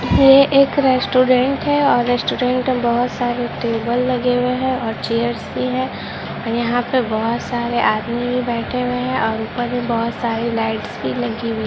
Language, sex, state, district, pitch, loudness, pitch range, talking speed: Hindi, female, Bihar, Gopalganj, 245 Hz, -18 LUFS, 230-255 Hz, 190 wpm